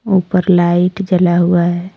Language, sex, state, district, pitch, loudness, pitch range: Hindi, female, Jharkhand, Deoghar, 180 Hz, -13 LUFS, 175-185 Hz